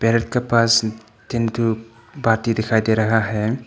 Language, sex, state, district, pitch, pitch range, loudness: Hindi, male, Arunachal Pradesh, Papum Pare, 115 Hz, 110-115 Hz, -19 LUFS